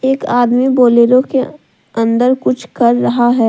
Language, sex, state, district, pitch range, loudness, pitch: Hindi, female, Jharkhand, Deoghar, 240-260 Hz, -12 LUFS, 245 Hz